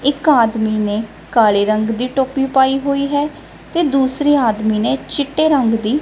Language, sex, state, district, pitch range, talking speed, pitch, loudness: Punjabi, female, Punjab, Kapurthala, 220-285 Hz, 170 wpm, 265 Hz, -16 LUFS